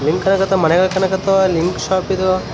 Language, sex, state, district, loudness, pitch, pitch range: Kannada, male, Karnataka, Raichur, -16 LUFS, 190 Hz, 180-190 Hz